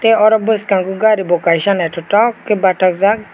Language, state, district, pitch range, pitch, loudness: Kokborok, Tripura, West Tripura, 185-215 Hz, 200 Hz, -14 LUFS